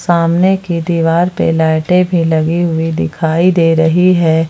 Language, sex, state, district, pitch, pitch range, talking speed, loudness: Hindi, female, Jharkhand, Palamu, 165 Hz, 160-175 Hz, 160 wpm, -12 LUFS